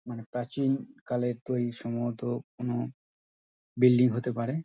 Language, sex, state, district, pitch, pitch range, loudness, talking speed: Bengali, male, West Bengal, Dakshin Dinajpur, 120 Hz, 120-125 Hz, -30 LUFS, 90 wpm